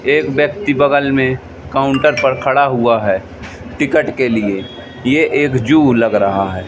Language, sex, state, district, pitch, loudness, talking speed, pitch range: Hindi, male, Madhya Pradesh, Katni, 130 Hz, -14 LUFS, 160 wpm, 115-145 Hz